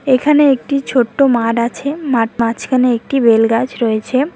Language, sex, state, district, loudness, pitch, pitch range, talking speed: Bengali, female, West Bengal, Cooch Behar, -14 LUFS, 250 Hz, 230-275 Hz, 135 wpm